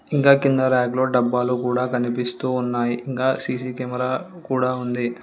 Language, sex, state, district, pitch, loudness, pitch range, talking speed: Telugu, female, Telangana, Hyderabad, 125 Hz, -21 LUFS, 125-130 Hz, 140 wpm